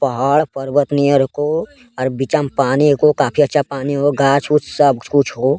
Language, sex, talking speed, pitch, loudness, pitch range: Angika, male, 170 wpm, 140 Hz, -16 LUFS, 135-150 Hz